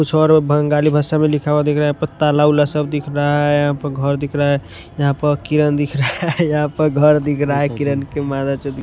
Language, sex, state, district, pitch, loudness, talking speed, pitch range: Hindi, male, Punjab, Kapurthala, 145 Hz, -16 LUFS, 245 wpm, 145-150 Hz